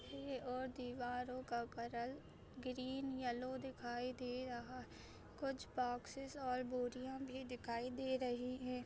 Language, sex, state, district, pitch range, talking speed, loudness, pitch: Hindi, female, Jharkhand, Sahebganj, 245-260 Hz, 135 wpm, -45 LUFS, 255 Hz